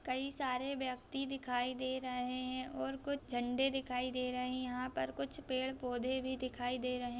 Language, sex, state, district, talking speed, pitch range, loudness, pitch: Hindi, female, Bihar, Purnia, 190 wpm, 250-260 Hz, -39 LUFS, 255 Hz